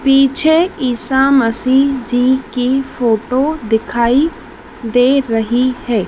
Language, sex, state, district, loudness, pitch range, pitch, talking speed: Hindi, female, Madhya Pradesh, Dhar, -14 LUFS, 240-275 Hz, 255 Hz, 100 wpm